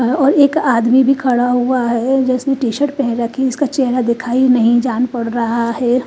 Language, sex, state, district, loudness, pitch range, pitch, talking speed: Hindi, female, Chandigarh, Chandigarh, -15 LUFS, 240-265 Hz, 250 Hz, 205 wpm